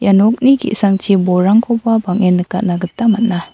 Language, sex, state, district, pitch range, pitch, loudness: Garo, female, Meghalaya, South Garo Hills, 185-225 Hz, 200 Hz, -13 LUFS